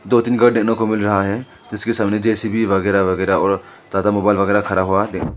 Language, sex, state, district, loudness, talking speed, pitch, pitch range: Hindi, male, Arunachal Pradesh, Lower Dibang Valley, -17 LUFS, 190 wpm, 105 Hz, 95-110 Hz